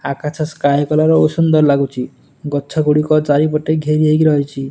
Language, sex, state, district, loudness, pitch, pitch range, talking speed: Odia, male, Odisha, Nuapada, -15 LUFS, 150 Hz, 140-155 Hz, 155 wpm